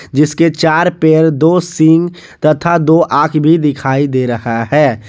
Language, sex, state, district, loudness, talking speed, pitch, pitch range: Hindi, male, Jharkhand, Garhwa, -11 LUFS, 155 wpm, 155 Hz, 140-165 Hz